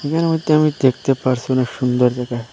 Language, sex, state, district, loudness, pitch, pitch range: Bengali, male, Assam, Hailakandi, -17 LUFS, 130 Hz, 125-155 Hz